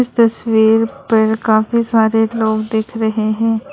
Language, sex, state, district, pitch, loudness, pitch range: Hindi, female, Arunachal Pradesh, Lower Dibang Valley, 225 Hz, -15 LUFS, 220-230 Hz